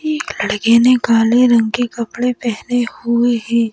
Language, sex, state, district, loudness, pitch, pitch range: Hindi, female, Madhya Pradesh, Bhopal, -15 LUFS, 235 Hz, 230-245 Hz